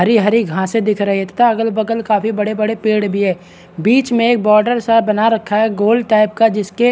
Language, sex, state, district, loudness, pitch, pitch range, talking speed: Hindi, male, Maharashtra, Chandrapur, -14 LUFS, 215 Hz, 205-230 Hz, 240 wpm